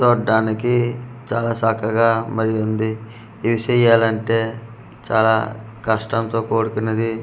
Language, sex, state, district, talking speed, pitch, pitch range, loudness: Telugu, male, Andhra Pradesh, Manyam, 75 wpm, 115 Hz, 110-115 Hz, -19 LUFS